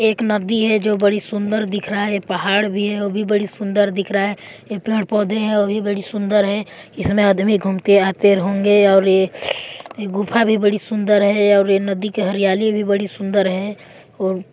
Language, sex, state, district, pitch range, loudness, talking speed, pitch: Hindi, female, Chhattisgarh, Balrampur, 195-210 Hz, -17 LUFS, 210 wpm, 205 Hz